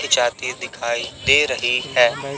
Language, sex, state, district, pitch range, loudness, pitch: Hindi, male, Chhattisgarh, Raipur, 120-140 Hz, -19 LUFS, 125 Hz